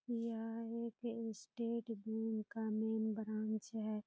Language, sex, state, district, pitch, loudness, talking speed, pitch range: Hindi, female, Bihar, Purnia, 225 Hz, -42 LUFS, 120 wpm, 220-230 Hz